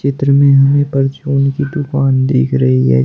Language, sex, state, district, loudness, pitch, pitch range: Hindi, male, Uttar Pradesh, Shamli, -12 LUFS, 135 Hz, 130-140 Hz